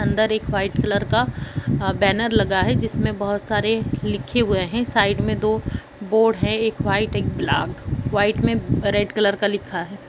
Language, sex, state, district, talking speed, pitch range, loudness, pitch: Hindi, female, Bihar, Jamui, 180 wpm, 195-220 Hz, -21 LUFS, 205 Hz